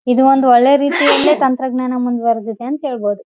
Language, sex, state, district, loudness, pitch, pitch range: Kannada, female, Karnataka, Raichur, -14 LUFS, 255 Hz, 240-270 Hz